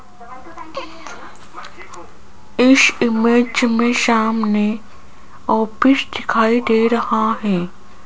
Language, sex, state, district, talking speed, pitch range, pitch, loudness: Hindi, female, Rajasthan, Jaipur, 65 wpm, 220-250 Hz, 235 Hz, -16 LUFS